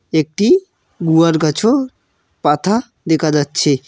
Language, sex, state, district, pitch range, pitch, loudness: Bengali, male, West Bengal, Cooch Behar, 150-215 Hz, 160 Hz, -15 LUFS